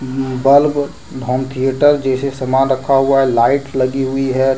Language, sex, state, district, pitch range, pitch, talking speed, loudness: Hindi, male, Jharkhand, Deoghar, 130-135 Hz, 135 Hz, 170 wpm, -15 LUFS